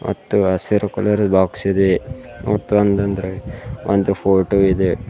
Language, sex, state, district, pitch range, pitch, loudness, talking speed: Kannada, male, Karnataka, Bidar, 95-105 Hz, 100 Hz, -18 LUFS, 115 wpm